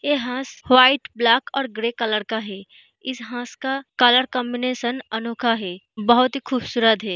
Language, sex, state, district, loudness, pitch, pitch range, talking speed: Hindi, female, Bihar, East Champaran, -20 LUFS, 245 Hz, 225-255 Hz, 170 wpm